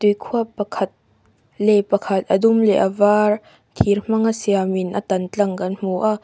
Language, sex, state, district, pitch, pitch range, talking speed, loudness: Mizo, female, Mizoram, Aizawl, 205 Hz, 195-215 Hz, 165 wpm, -19 LUFS